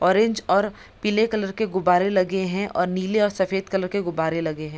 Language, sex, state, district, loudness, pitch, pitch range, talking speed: Hindi, female, Bihar, Madhepura, -23 LUFS, 190 Hz, 180-205 Hz, 225 wpm